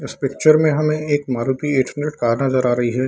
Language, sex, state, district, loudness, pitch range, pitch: Hindi, male, Bihar, Samastipur, -18 LUFS, 125-150 Hz, 135 Hz